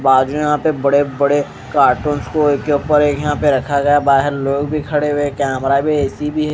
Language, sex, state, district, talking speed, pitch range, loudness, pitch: Hindi, male, Chhattisgarh, Raipur, 230 wpm, 140-150 Hz, -16 LUFS, 145 Hz